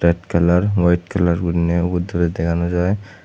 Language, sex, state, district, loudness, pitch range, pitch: Chakma, male, Tripura, West Tripura, -18 LUFS, 85-90 Hz, 85 Hz